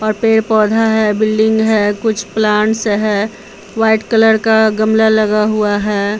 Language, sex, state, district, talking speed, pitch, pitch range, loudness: Hindi, female, Bihar, Patna, 155 wpm, 215 Hz, 210-220 Hz, -13 LUFS